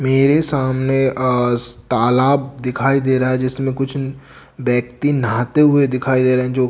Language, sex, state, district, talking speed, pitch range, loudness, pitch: Hindi, male, Bihar, Katihar, 150 wpm, 125-135 Hz, -17 LUFS, 130 Hz